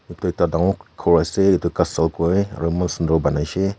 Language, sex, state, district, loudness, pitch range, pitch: Nagamese, male, Nagaland, Kohima, -20 LUFS, 85-95 Hz, 85 Hz